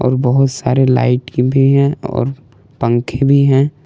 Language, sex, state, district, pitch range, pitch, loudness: Hindi, male, Jharkhand, Palamu, 125-140 Hz, 130 Hz, -14 LUFS